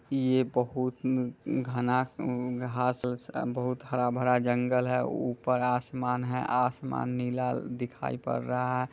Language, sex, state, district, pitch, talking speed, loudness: Hindi, male, Bihar, Muzaffarpur, 125 Hz, 130 wpm, -30 LUFS